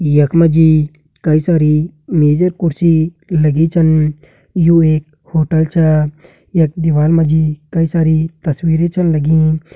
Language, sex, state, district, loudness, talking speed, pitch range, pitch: Garhwali, male, Uttarakhand, Uttarkashi, -13 LUFS, 130 wpm, 155-165 Hz, 160 Hz